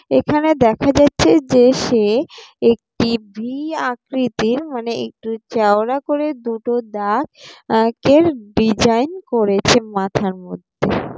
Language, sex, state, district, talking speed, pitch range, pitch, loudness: Bengali, female, West Bengal, Jalpaiguri, 105 wpm, 220-270 Hz, 235 Hz, -17 LUFS